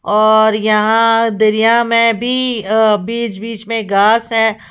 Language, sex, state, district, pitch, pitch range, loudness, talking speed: Hindi, female, Uttar Pradesh, Lalitpur, 220 Hz, 215-230 Hz, -13 LUFS, 140 wpm